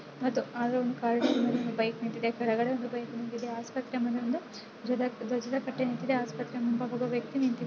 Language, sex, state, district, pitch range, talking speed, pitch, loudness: Kannada, female, Karnataka, Chamarajanagar, 235-250 Hz, 155 wpm, 240 Hz, -32 LUFS